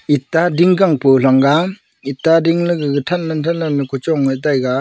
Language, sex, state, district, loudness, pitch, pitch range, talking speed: Wancho, male, Arunachal Pradesh, Longding, -15 LUFS, 155 Hz, 140-170 Hz, 175 wpm